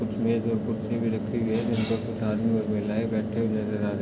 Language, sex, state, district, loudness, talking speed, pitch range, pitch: Hindi, male, Maharashtra, Chandrapur, -27 LUFS, 255 wpm, 110-115 Hz, 110 Hz